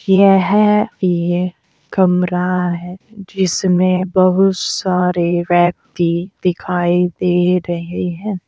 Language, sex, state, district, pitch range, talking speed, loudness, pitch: Hindi, female, Uttar Pradesh, Saharanpur, 175-190 Hz, 85 wpm, -16 LUFS, 180 Hz